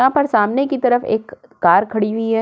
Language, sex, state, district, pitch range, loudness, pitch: Hindi, female, Uttar Pradesh, Jyotiba Phule Nagar, 220-260 Hz, -17 LUFS, 225 Hz